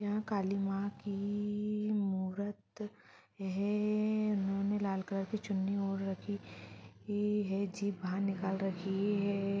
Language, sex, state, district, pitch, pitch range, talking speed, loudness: Hindi, female, Uttar Pradesh, Deoria, 200 Hz, 195-205 Hz, 135 wpm, -36 LUFS